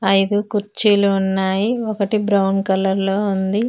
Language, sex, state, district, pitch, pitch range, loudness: Telugu, female, Telangana, Mahabubabad, 200 Hz, 195-210 Hz, -18 LUFS